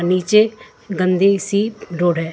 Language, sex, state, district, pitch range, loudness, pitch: Hindi, female, Jharkhand, Ranchi, 175-210 Hz, -17 LUFS, 185 Hz